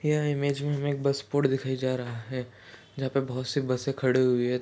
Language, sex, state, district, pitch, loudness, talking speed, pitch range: Hindi, male, Uttar Pradesh, Jalaun, 135 Hz, -28 LUFS, 245 wpm, 125-140 Hz